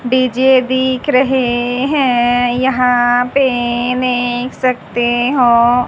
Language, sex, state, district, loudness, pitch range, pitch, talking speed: Hindi, female, Haryana, Jhajjar, -13 LUFS, 245-260 Hz, 250 Hz, 90 wpm